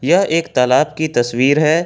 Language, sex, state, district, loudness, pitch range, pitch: Hindi, male, Jharkhand, Ranchi, -15 LUFS, 125-160 Hz, 150 Hz